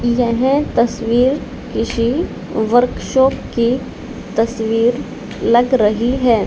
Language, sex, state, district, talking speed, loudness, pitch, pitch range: Hindi, female, Haryana, Charkhi Dadri, 95 wpm, -16 LUFS, 240 Hz, 230-255 Hz